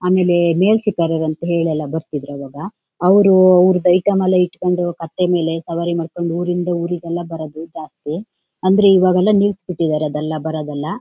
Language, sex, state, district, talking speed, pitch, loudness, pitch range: Kannada, female, Karnataka, Shimoga, 135 wpm, 175 Hz, -16 LUFS, 160-185 Hz